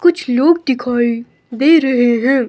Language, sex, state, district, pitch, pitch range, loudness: Hindi, male, Himachal Pradesh, Shimla, 260 Hz, 240-295 Hz, -14 LUFS